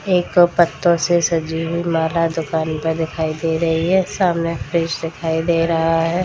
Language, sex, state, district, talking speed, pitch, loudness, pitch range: Hindi, female, Bihar, Darbhanga, 170 wpm, 165 Hz, -18 LUFS, 160-170 Hz